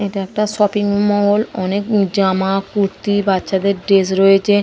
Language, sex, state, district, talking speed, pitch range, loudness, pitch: Bengali, female, West Bengal, Dakshin Dinajpur, 155 wpm, 195-205 Hz, -16 LUFS, 200 Hz